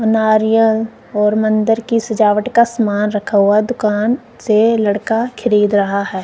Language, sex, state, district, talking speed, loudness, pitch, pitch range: Hindi, female, Punjab, Kapurthala, 145 wpm, -15 LUFS, 215 Hz, 210-230 Hz